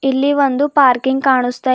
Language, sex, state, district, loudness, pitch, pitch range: Kannada, female, Karnataka, Bidar, -14 LUFS, 265 Hz, 260-280 Hz